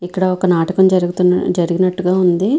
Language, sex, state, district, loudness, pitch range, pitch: Telugu, female, Andhra Pradesh, Visakhapatnam, -15 LUFS, 180-185 Hz, 185 Hz